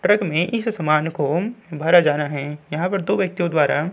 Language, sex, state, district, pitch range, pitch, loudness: Hindi, male, Uttarakhand, Tehri Garhwal, 150-190 Hz, 170 Hz, -20 LUFS